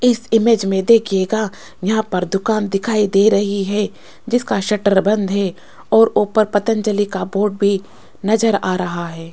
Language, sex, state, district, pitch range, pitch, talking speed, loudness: Hindi, female, Rajasthan, Jaipur, 195-220 Hz, 205 Hz, 160 wpm, -17 LUFS